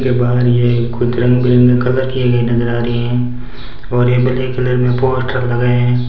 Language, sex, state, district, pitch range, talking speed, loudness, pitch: Hindi, male, Rajasthan, Bikaner, 120-125 Hz, 205 wpm, -14 LUFS, 125 Hz